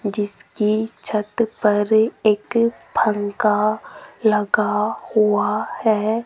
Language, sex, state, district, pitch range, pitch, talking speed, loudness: Hindi, female, Rajasthan, Jaipur, 210-225 Hz, 215 Hz, 75 wpm, -20 LUFS